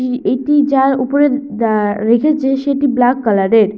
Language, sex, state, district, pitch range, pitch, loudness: Bengali, female, West Bengal, Purulia, 225-280 Hz, 255 Hz, -14 LUFS